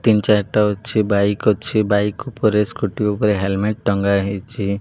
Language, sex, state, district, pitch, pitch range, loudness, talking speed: Odia, male, Odisha, Malkangiri, 105 Hz, 100-110 Hz, -18 LUFS, 150 wpm